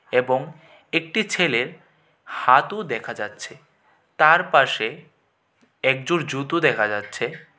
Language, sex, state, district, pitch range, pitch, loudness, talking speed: Bengali, male, Tripura, West Tripura, 130-170 Hz, 155 Hz, -21 LUFS, 105 wpm